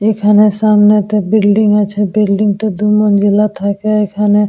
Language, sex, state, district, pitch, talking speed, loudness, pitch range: Bengali, female, West Bengal, Dakshin Dinajpur, 210 Hz, 120 wpm, -11 LUFS, 205-215 Hz